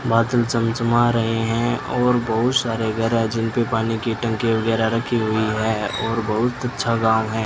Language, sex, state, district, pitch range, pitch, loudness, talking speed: Hindi, male, Rajasthan, Bikaner, 110-120 Hz, 115 Hz, -20 LUFS, 175 wpm